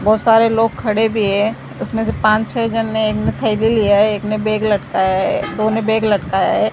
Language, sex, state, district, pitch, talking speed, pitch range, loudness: Hindi, female, Maharashtra, Mumbai Suburban, 215 Hz, 240 wpm, 210-225 Hz, -16 LUFS